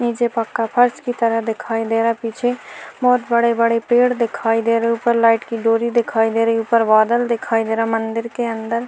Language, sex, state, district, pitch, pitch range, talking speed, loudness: Hindi, female, Chhattisgarh, Korba, 230 Hz, 225-235 Hz, 235 wpm, -18 LUFS